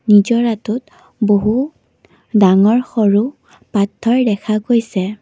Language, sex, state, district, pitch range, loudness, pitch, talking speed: Assamese, female, Assam, Kamrup Metropolitan, 205-235 Hz, -15 LUFS, 215 Hz, 80 wpm